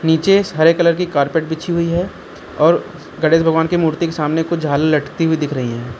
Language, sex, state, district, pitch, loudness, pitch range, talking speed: Hindi, male, Uttar Pradesh, Lucknow, 160 Hz, -16 LUFS, 150-170 Hz, 230 wpm